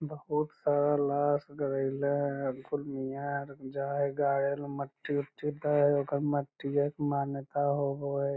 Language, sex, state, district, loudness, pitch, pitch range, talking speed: Magahi, male, Bihar, Lakhisarai, -32 LUFS, 140 Hz, 140-145 Hz, 150 wpm